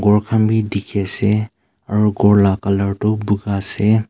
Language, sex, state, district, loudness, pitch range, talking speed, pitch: Nagamese, male, Nagaland, Kohima, -17 LUFS, 100-105 Hz, 175 wpm, 105 Hz